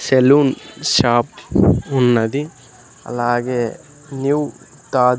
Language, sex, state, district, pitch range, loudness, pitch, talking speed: Telugu, male, Andhra Pradesh, Sri Satya Sai, 120-140 Hz, -17 LUFS, 130 Hz, 70 wpm